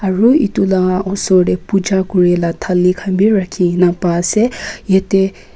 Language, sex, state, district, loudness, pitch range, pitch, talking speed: Nagamese, female, Nagaland, Kohima, -14 LUFS, 180-195 Hz, 190 Hz, 160 wpm